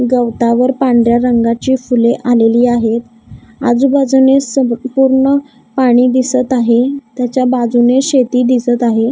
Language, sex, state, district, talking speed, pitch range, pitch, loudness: Marathi, female, Maharashtra, Gondia, 110 wpm, 235-260 Hz, 250 Hz, -12 LUFS